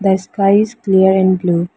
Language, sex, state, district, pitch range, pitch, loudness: English, female, Arunachal Pradesh, Lower Dibang Valley, 185-200 Hz, 190 Hz, -13 LUFS